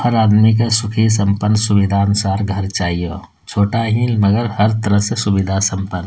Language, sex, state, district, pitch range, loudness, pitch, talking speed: Angika, male, Bihar, Bhagalpur, 100-110 Hz, -15 LUFS, 100 Hz, 170 wpm